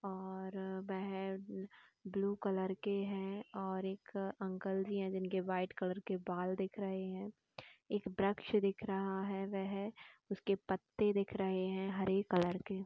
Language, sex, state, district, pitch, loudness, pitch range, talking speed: Hindi, female, Uttar Pradesh, Jalaun, 195 Hz, -40 LUFS, 190-200 Hz, 160 wpm